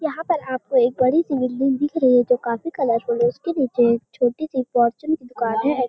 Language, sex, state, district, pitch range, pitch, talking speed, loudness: Hindi, female, Uttarakhand, Uttarkashi, 245-315 Hz, 255 Hz, 235 wpm, -20 LUFS